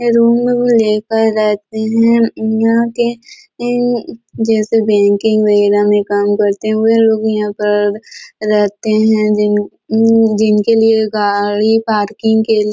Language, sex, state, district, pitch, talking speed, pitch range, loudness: Hindi, female, Chhattisgarh, Korba, 220 Hz, 140 wpm, 210-225 Hz, -13 LUFS